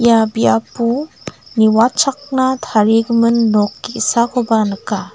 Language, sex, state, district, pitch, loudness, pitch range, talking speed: Garo, female, Meghalaya, West Garo Hills, 230 Hz, -15 LUFS, 220-245 Hz, 80 wpm